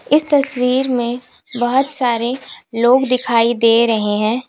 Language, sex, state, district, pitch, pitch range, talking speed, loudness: Hindi, female, Uttar Pradesh, Lalitpur, 245 Hz, 235-260 Hz, 135 wpm, -16 LUFS